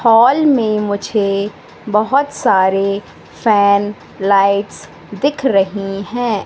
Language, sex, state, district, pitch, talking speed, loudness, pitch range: Hindi, female, Madhya Pradesh, Katni, 205 Hz, 95 wpm, -15 LUFS, 200-235 Hz